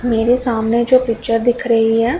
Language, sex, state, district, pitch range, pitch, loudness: Hindi, female, Punjab, Pathankot, 230-245 Hz, 235 Hz, -15 LUFS